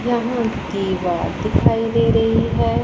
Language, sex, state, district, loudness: Hindi, female, Punjab, Pathankot, -19 LUFS